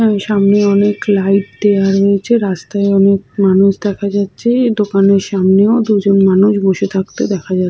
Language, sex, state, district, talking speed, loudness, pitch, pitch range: Bengali, female, West Bengal, Jhargram, 155 wpm, -12 LUFS, 200 Hz, 195-205 Hz